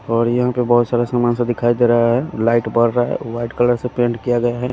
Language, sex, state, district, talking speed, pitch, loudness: Hindi, male, Bihar, West Champaran, 280 wpm, 120 Hz, -17 LUFS